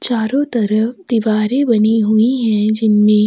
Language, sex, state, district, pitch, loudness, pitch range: Hindi, female, Chhattisgarh, Sukma, 220 Hz, -14 LUFS, 215-235 Hz